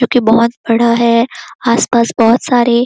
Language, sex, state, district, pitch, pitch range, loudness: Hindi, female, Chhattisgarh, Korba, 235 Hz, 230-245 Hz, -12 LUFS